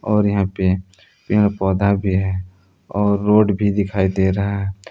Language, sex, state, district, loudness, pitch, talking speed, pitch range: Hindi, male, Jharkhand, Palamu, -18 LUFS, 100 Hz, 170 wpm, 95-100 Hz